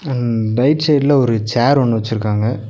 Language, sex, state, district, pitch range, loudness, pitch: Tamil, male, Tamil Nadu, Nilgiris, 110-140 Hz, -15 LUFS, 120 Hz